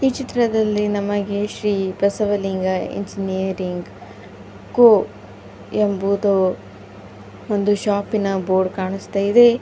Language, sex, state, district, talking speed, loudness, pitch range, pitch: Kannada, female, Karnataka, Bidar, 75 wpm, -19 LUFS, 180-205 Hz, 195 Hz